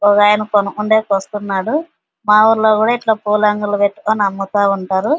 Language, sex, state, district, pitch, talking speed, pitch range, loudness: Telugu, female, Andhra Pradesh, Anantapur, 210 Hz, 160 wpm, 200-220 Hz, -15 LUFS